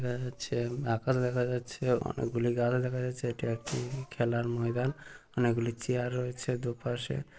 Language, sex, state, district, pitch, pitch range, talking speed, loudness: Bengali, male, West Bengal, Malda, 125 Hz, 120-125 Hz, 145 wpm, -32 LUFS